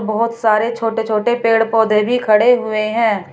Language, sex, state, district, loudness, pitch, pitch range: Hindi, female, Uttar Pradesh, Shamli, -15 LUFS, 225 Hz, 215-230 Hz